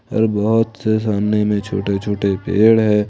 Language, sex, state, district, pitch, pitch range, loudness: Hindi, male, Jharkhand, Ranchi, 105 Hz, 100-110 Hz, -17 LUFS